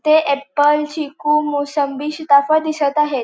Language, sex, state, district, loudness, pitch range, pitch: Marathi, female, Goa, North and South Goa, -17 LUFS, 285-305 Hz, 295 Hz